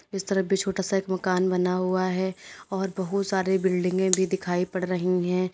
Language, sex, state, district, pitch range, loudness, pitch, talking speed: Hindi, female, Uttar Pradesh, Lalitpur, 185-190 Hz, -26 LUFS, 185 Hz, 205 wpm